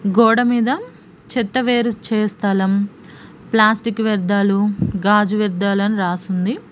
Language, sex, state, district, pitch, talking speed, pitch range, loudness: Telugu, female, Telangana, Mahabubabad, 210 Hz, 115 wpm, 200-225 Hz, -18 LUFS